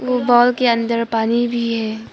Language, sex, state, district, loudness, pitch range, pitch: Hindi, female, Arunachal Pradesh, Papum Pare, -17 LUFS, 230-245 Hz, 235 Hz